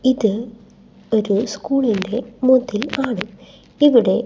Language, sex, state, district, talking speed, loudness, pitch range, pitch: Malayalam, female, Kerala, Kasaragod, 85 wpm, -18 LUFS, 215-260 Hz, 235 Hz